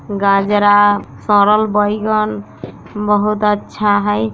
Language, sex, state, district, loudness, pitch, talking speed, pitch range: Bajjika, female, Bihar, Vaishali, -14 LUFS, 205 Hz, 85 wpm, 200-210 Hz